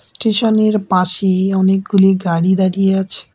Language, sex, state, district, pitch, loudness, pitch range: Bengali, male, West Bengal, Cooch Behar, 190 Hz, -14 LUFS, 185-200 Hz